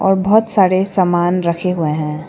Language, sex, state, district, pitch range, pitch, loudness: Hindi, female, Arunachal Pradesh, Lower Dibang Valley, 170-195 Hz, 180 Hz, -15 LUFS